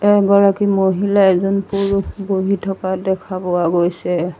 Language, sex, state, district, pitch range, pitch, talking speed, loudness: Assamese, female, Assam, Sonitpur, 185-200 Hz, 195 Hz, 120 wpm, -17 LUFS